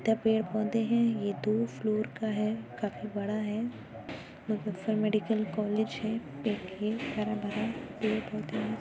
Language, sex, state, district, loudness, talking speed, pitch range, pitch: Hindi, female, Uttar Pradesh, Muzaffarnagar, -32 LUFS, 130 wpm, 210-225 Hz, 215 Hz